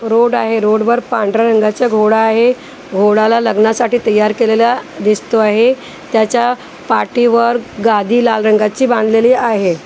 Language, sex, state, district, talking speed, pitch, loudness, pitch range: Marathi, female, Maharashtra, Gondia, 130 wpm, 225 Hz, -12 LUFS, 215-240 Hz